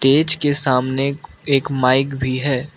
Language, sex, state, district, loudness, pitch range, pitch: Hindi, male, Arunachal Pradesh, Lower Dibang Valley, -18 LUFS, 130-145 Hz, 135 Hz